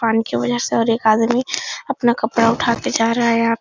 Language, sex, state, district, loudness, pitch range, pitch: Hindi, female, Bihar, Supaul, -18 LUFS, 225-235 Hz, 230 Hz